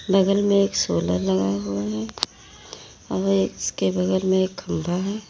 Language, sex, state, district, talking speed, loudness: Hindi, female, Uttar Pradesh, Lalitpur, 160 wpm, -23 LUFS